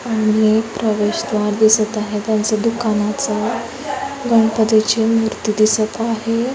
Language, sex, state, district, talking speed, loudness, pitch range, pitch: Marathi, female, Maharashtra, Dhule, 130 wpm, -17 LUFS, 215-230 Hz, 220 Hz